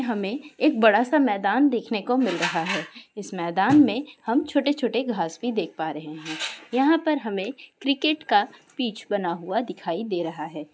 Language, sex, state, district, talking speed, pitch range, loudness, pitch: Hindi, female, Bihar, Sitamarhi, 190 wpm, 190-280 Hz, -24 LUFS, 235 Hz